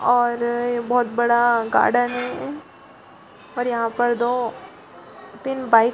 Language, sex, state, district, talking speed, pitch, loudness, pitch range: Hindi, female, Bihar, Gaya, 130 wpm, 240 Hz, -21 LUFS, 235-245 Hz